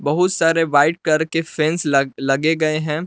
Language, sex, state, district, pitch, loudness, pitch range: Hindi, male, Jharkhand, Palamu, 155 Hz, -18 LUFS, 145-165 Hz